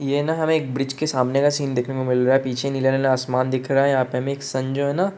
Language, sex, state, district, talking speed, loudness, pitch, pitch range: Hindi, male, Uttar Pradesh, Jalaun, 335 wpm, -21 LUFS, 135 Hz, 130-140 Hz